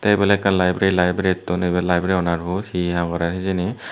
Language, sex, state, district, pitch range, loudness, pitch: Chakma, male, Tripura, Unakoti, 90-95 Hz, -20 LUFS, 90 Hz